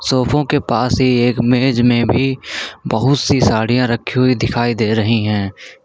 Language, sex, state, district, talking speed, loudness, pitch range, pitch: Hindi, male, Uttar Pradesh, Lucknow, 175 wpm, -15 LUFS, 115-130 Hz, 120 Hz